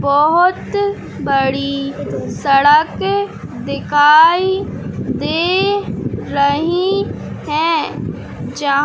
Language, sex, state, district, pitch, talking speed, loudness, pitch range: Hindi, male, Madhya Pradesh, Katni, 315 Hz, 55 wpm, -15 LUFS, 285-375 Hz